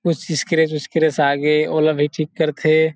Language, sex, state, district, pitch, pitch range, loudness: Chhattisgarhi, male, Chhattisgarh, Rajnandgaon, 155 Hz, 150-160 Hz, -18 LUFS